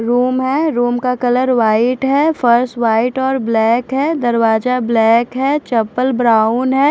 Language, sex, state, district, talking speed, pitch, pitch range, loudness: Hindi, female, Punjab, Fazilka, 155 wpm, 245 Hz, 230-265 Hz, -14 LUFS